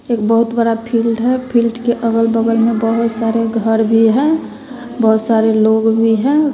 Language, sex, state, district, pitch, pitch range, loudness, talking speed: Hindi, female, Bihar, West Champaran, 230 Hz, 225-235 Hz, -14 LUFS, 185 wpm